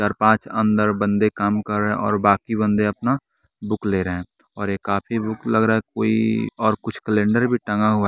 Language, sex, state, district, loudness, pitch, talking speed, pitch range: Hindi, male, Bihar, West Champaran, -21 LUFS, 105 Hz, 225 wpm, 105-110 Hz